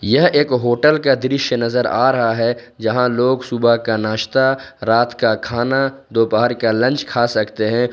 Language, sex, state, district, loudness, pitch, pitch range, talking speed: Hindi, male, Jharkhand, Ranchi, -17 LUFS, 120 Hz, 115-130 Hz, 175 wpm